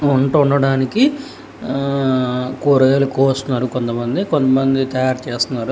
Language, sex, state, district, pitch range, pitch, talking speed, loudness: Telugu, male, Telangana, Hyderabad, 130-140 Hz, 135 Hz, 85 wpm, -17 LUFS